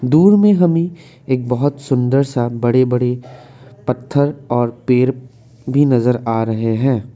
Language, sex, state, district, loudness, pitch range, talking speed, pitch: Hindi, male, Assam, Kamrup Metropolitan, -16 LUFS, 120-140 Hz, 140 wpm, 125 Hz